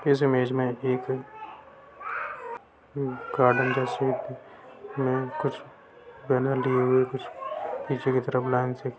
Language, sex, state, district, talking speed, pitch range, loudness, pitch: Hindi, male, Bihar, Sitamarhi, 95 wpm, 125-140 Hz, -27 LUFS, 130 Hz